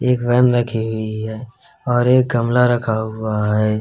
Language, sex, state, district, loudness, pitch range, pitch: Hindi, male, Uttar Pradesh, Hamirpur, -18 LUFS, 110-125 Hz, 115 Hz